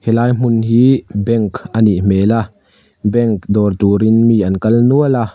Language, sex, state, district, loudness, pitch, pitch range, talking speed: Mizo, male, Mizoram, Aizawl, -13 LUFS, 110 Hz, 100-115 Hz, 190 wpm